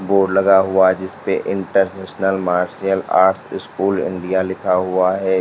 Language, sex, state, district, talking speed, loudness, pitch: Hindi, male, Uttar Pradesh, Lalitpur, 145 wpm, -17 LUFS, 95 Hz